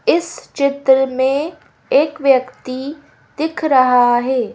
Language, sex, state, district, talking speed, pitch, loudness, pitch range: Hindi, female, Madhya Pradesh, Bhopal, 105 wpm, 270 Hz, -16 LUFS, 255-295 Hz